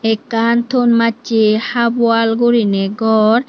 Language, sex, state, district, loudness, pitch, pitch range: Chakma, female, Tripura, Unakoti, -14 LUFS, 230 Hz, 220-235 Hz